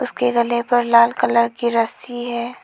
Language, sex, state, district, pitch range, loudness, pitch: Hindi, female, Arunachal Pradesh, Lower Dibang Valley, 235-245 Hz, -18 LUFS, 235 Hz